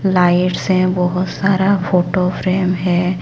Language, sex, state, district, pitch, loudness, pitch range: Hindi, male, Chhattisgarh, Raipur, 185 Hz, -16 LUFS, 180-185 Hz